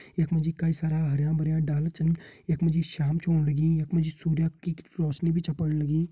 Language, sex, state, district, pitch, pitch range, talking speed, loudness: Hindi, male, Uttarakhand, Uttarkashi, 160 Hz, 155-165 Hz, 255 wpm, -27 LUFS